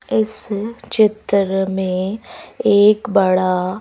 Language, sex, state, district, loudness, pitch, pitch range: Hindi, female, Madhya Pradesh, Bhopal, -17 LUFS, 200 Hz, 190-215 Hz